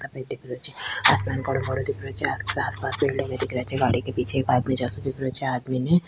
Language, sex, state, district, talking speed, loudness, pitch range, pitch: Rajasthani, female, Rajasthan, Churu, 295 wpm, -25 LUFS, 125-135 Hz, 130 Hz